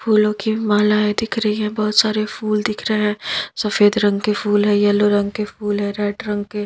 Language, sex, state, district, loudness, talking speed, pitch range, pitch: Hindi, female, Madhya Pradesh, Bhopal, -18 LUFS, 225 wpm, 205-215 Hz, 210 Hz